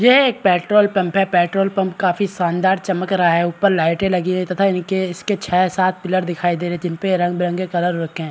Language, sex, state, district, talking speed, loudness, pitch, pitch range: Hindi, male, Bihar, Araria, 225 wpm, -18 LUFS, 185 Hz, 175-195 Hz